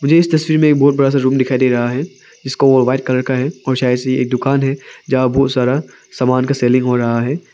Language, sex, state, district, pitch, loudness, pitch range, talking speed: Hindi, male, Arunachal Pradesh, Papum Pare, 130 Hz, -15 LUFS, 130-140 Hz, 270 wpm